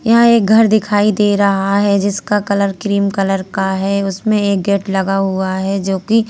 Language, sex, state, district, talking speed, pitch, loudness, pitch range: Hindi, female, Madhya Pradesh, Bhopal, 190 wpm, 200 Hz, -14 LUFS, 195-210 Hz